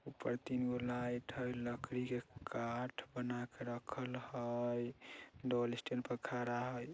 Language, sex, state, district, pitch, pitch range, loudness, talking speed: Bajjika, male, Bihar, Vaishali, 125 Hz, 120-125 Hz, -42 LUFS, 140 wpm